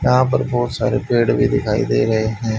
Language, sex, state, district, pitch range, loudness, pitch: Hindi, male, Haryana, Jhajjar, 110-125 Hz, -17 LUFS, 115 Hz